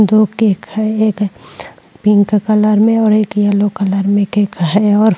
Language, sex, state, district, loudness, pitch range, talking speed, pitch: Hindi, female, Uttar Pradesh, Jyotiba Phule Nagar, -13 LUFS, 205-215 Hz, 185 wpm, 210 Hz